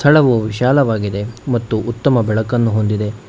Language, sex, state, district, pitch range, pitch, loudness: Kannada, male, Karnataka, Bangalore, 110-125 Hz, 115 Hz, -16 LUFS